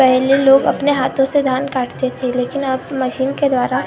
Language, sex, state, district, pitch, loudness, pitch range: Hindi, female, Maharashtra, Gondia, 265 Hz, -16 LUFS, 255-275 Hz